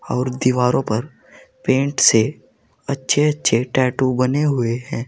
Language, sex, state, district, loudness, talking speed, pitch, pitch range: Hindi, male, Uttar Pradesh, Saharanpur, -18 LUFS, 130 wpm, 130 Hz, 125-140 Hz